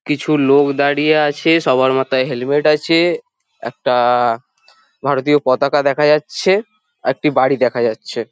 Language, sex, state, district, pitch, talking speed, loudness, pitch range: Bengali, male, West Bengal, Jhargram, 145 Hz, 130 wpm, -15 LUFS, 130-155 Hz